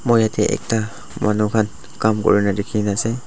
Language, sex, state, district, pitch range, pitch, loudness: Nagamese, male, Nagaland, Dimapur, 105-110 Hz, 105 Hz, -19 LUFS